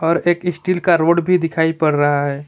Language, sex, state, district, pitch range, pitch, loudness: Hindi, male, West Bengal, Alipurduar, 155-175 Hz, 165 Hz, -16 LUFS